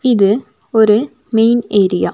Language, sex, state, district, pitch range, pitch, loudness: Tamil, female, Tamil Nadu, Nilgiris, 210-240 Hz, 220 Hz, -14 LUFS